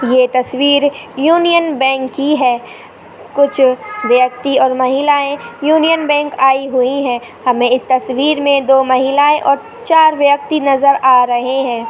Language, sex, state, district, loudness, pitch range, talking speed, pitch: Hindi, female, Maharashtra, Pune, -13 LUFS, 255-290 Hz, 145 wpm, 275 Hz